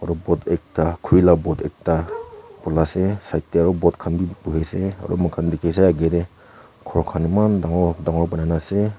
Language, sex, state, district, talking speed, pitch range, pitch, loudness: Nagamese, female, Nagaland, Kohima, 205 wpm, 85-95 Hz, 85 Hz, -20 LUFS